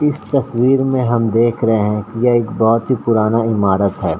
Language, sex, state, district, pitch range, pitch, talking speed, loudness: Hindi, male, Bihar, Saran, 110-125 Hz, 115 Hz, 215 wpm, -15 LUFS